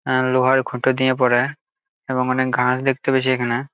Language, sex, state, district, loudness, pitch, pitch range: Bengali, male, West Bengal, Jalpaiguri, -19 LUFS, 130 Hz, 125-130 Hz